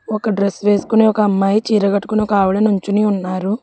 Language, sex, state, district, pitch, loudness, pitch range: Telugu, female, Telangana, Hyderabad, 205 Hz, -16 LUFS, 200-215 Hz